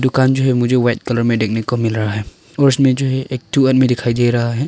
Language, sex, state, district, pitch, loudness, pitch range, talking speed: Hindi, male, Arunachal Pradesh, Longding, 125 Hz, -16 LUFS, 120-130 Hz, 295 wpm